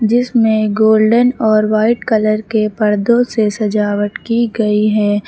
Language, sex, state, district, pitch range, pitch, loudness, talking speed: Hindi, female, Uttar Pradesh, Lucknow, 215-230 Hz, 215 Hz, -14 LUFS, 135 wpm